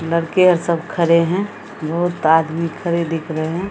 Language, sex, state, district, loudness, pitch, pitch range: Hindi, female, Bihar, Samastipur, -18 LUFS, 170 Hz, 165-175 Hz